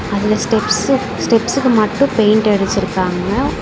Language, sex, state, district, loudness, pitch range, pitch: Tamil, female, Tamil Nadu, Chennai, -15 LUFS, 200-235 Hz, 215 Hz